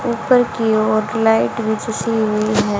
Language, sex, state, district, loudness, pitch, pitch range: Hindi, female, Haryana, Jhajjar, -17 LUFS, 220 Hz, 215-225 Hz